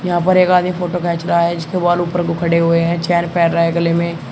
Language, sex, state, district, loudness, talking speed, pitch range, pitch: Hindi, male, Uttar Pradesh, Shamli, -15 LUFS, 290 wpm, 170-175 Hz, 170 Hz